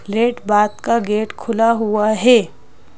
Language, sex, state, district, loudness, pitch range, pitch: Hindi, female, Madhya Pradesh, Bhopal, -16 LUFS, 210-230 Hz, 215 Hz